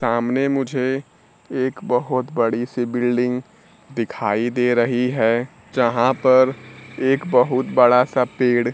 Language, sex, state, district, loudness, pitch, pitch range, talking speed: Hindi, male, Bihar, Kaimur, -19 LUFS, 125 Hz, 120-130 Hz, 125 wpm